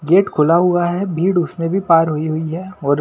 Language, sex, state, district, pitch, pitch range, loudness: Hindi, male, Delhi, New Delhi, 170 Hz, 155-180 Hz, -16 LUFS